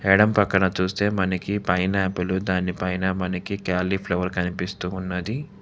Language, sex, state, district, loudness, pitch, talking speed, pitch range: Telugu, male, Telangana, Hyderabad, -24 LUFS, 95 Hz, 115 wpm, 90-100 Hz